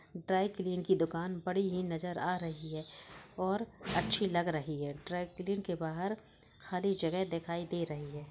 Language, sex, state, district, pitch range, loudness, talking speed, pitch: Hindi, female, Bihar, Gaya, 165-190 Hz, -36 LUFS, 180 wpm, 180 Hz